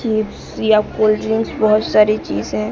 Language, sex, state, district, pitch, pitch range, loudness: Hindi, female, Odisha, Sambalpur, 215 Hz, 210-220 Hz, -16 LUFS